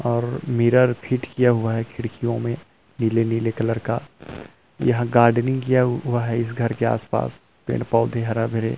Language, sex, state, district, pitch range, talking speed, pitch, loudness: Hindi, male, Chhattisgarh, Rajnandgaon, 115-120 Hz, 155 wpm, 115 Hz, -22 LUFS